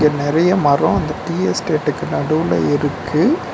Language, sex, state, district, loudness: Tamil, male, Tamil Nadu, Nilgiris, -17 LUFS